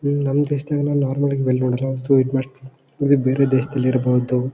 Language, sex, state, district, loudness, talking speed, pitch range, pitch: Kannada, male, Karnataka, Bellary, -19 LUFS, 80 wpm, 130-140 Hz, 135 Hz